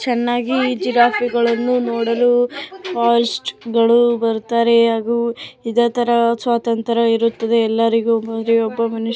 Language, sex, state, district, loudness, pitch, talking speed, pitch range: Kannada, female, Karnataka, Mysore, -17 LUFS, 235 Hz, 85 wpm, 230-240 Hz